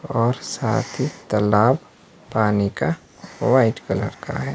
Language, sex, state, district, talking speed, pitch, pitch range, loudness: Hindi, male, Himachal Pradesh, Shimla, 130 wpm, 115 Hz, 105-135 Hz, -21 LUFS